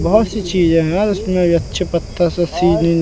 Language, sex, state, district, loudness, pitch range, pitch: Hindi, male, Madhya Pradesh, Katni, -16 LUFS, 170-195 Hz, 175 Hz